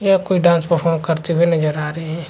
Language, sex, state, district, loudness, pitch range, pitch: Hindi, male, Chhattisgarh, Bastar, -17 LUFS, 160-175 Hz, 165 Hz